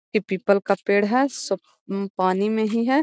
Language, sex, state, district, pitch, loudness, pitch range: Magahi, female, Bihar, Gaya, 200 Hz, -22 LUFS, 195-220 Hz